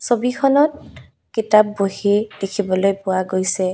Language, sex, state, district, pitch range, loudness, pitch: Assamese, female, Assam, Kamrup Metropolitan, 190-225 Hz, -18 LUFS, 200 Hz